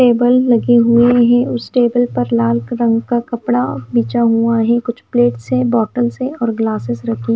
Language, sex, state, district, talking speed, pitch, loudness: Hindi, female, Himachal Pradesh, Shimla, 185 wpm, 235 Hz, -14 LUFS